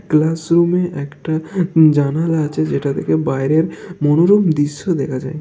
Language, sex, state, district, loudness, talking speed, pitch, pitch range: Bengali, male, West Bengal, Kolkata, -16 LUFS, 135 wpm, 155 Hz, 145-170 Hz